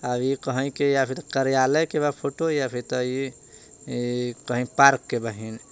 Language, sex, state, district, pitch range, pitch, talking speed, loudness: Bhojpuri, male, Jharkhand, Palamu, 125-140 Hz, 130 Hz, 180 wpm, -24 LUFS